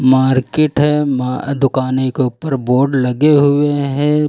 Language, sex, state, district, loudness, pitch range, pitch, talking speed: Hindi, male, Uttar Pradesh, Lucknow, -14 LUFS, 130-145 Hz, 135 Hz, 140 wpm